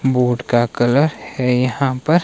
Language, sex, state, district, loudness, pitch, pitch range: Hindi, male, Himachal Pradesh, Shimla, -17 LUFS, 125 Hz, 125-135 Hz